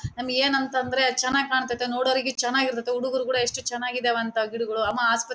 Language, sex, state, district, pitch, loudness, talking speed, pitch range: Kannada, female, Karnataka, Bellary, 250 Hz, -24 LUFS, 170 wpm, 240-260 Hz